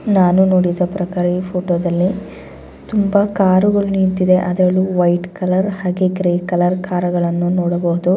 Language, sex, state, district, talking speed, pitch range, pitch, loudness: Kannada, female, Karnataka, Bellary, 145 wpm, 175-190 Hz, 180 Hz, -16 LUFS